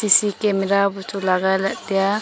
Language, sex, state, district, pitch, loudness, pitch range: Wancho, female, Arunachal Pradesh, Longding, 195 Hz, -19 LUFS, 195-205 Hz